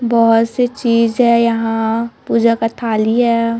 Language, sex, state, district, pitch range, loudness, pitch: Hindi, female, Chhattisgarh, Raipur, 225-235 Hz, -14 LUFS, 230 Hz